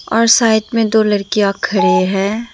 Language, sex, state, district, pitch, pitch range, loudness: Hindi, female, Tripura, Dhalai, 215 Hz, 200-225 Hz, -13 LUFS